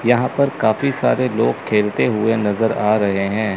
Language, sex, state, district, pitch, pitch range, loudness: Hindi, male, Chandigarh, Chandigarh, 110 Hz, 105-125 Hz, -18 LUFS